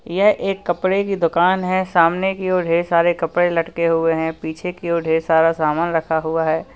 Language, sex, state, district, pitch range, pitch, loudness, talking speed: Hindi, male, Uttar Pradesh, Lalitpur, 165-185 Hz, 170 Hz, -18 LUFS, 215 wpm